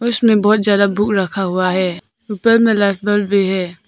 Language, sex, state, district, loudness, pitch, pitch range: Hindi, female, Arunachal Pradesh, Papum Pare, -15 LUFS, 200 Hz, 190-215 Hz